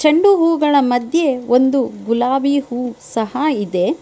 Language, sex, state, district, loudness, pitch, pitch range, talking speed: Kannada, female, Karnataka, Bangalore, -16 LUFS, 270 Hz, 245-300 Hz, 120 wpm